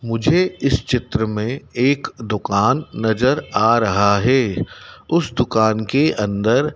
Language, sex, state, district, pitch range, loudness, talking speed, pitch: Hindi, male, Madhya Pradesh, Dhar, 110-135 Hz, -18 LUFS, 125 wpm, 120 Hz